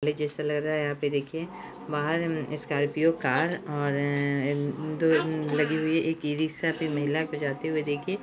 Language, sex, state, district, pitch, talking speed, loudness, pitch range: Hindi, female, Bihar, Purnia, 150 Hz, 175 wpm, -28 LUFS, 145-160 Hz